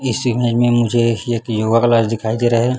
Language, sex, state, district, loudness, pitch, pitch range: Hindi, male, Chhattisgarh, Raipur, -16 LUFS, 120 Hz, 115-120 Hz